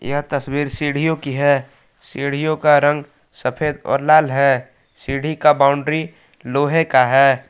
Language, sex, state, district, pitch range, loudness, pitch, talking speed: Hindi, male, Jharkhand, Palamu, 135-150 Hz, -17 LUFS, 145 Hz, 145 wpm